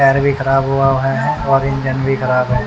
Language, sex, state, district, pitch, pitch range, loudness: Hindi, male, Haryana, Charkhi Dadri, 135 Hz, 130-135 Hz, -15 LUFS